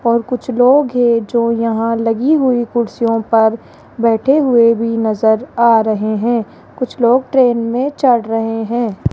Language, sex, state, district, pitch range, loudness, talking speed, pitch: Hindi, female, Rajasthan, Jaipur, 225-250 Hz, -14 LUFS, 165 wpm, 235 Hz